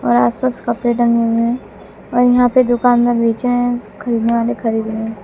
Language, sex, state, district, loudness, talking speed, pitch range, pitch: Hindi, female, Bihar, West Champaran, -15 LUFS, 240 wpm, 230-245 Hz, 235 Hz